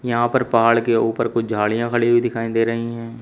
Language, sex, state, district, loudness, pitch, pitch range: Hindi, male, Uttar Pradesh, Shamli, -19 LUFS, 115 Hz, 115-120 Hz